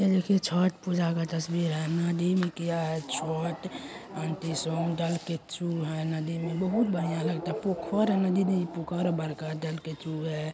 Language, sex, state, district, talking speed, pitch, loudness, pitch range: Hindi, male, Bihar, Saharsa, 195 wpm, 170 Hz, -29 LUFS, 160-180 Hz